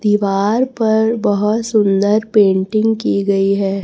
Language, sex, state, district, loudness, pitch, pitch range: Hindi, female, Chhattisgarh, Raipur, -15 LUFS, 210 Hz, 195-220 Hz